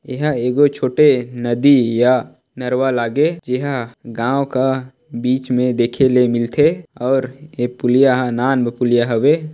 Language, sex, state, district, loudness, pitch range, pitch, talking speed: Chhattisgarhi, male, Chhattisgarh, Sarguja, -16 LUFS, 120-140 Hz, 130 Hz, 150 wpm